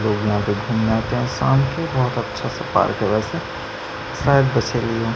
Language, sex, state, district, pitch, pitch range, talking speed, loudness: Hindi, male, Chhattisgarh, Sukma, 115 Hz, 105-125 Hz, 160 wpm, -20 LUFS